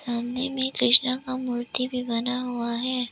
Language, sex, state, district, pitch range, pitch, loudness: Hindi, female, Arunachal Pradesh, Lower Dibang Valley, 240-255 Hz, 250 Hz, -24 LUFS